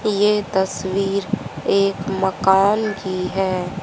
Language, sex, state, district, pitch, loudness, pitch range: Hindi, female, Haryana, Jhajjar, 195 Hz, -20 LUFS, 190-200 Hz